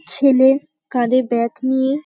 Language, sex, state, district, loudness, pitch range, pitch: Bengali, female, West Bengal, Paschim Medinipur, -17 LUFS, 250-275 Hz, 265 Hz